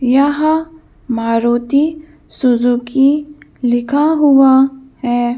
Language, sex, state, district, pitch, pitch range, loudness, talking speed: Hindi, female, Madhya Pradesh, Bhopal, 270 Hz, 240-295 Hz, -14 LUFS, 65 wpm